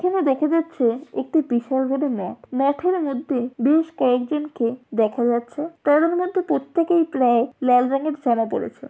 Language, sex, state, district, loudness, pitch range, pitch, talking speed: Bengali, female, West Bengal, Jalpaiguri, -21 LUFS, 245-315 Hz, 275 Hz, 140 wpm